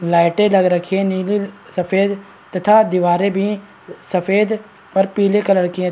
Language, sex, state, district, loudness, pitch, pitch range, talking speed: Hindi, male, Chhattisgarh, Rajnandgaon, -17 LUFS, 195 Hz, 185-205 Hz, 150 wpm